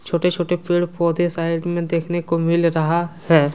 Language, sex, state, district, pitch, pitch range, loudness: Hindi, male, Jharkhand, Deoghar, 170 Hz, 165-175 Hz, -20 LUFS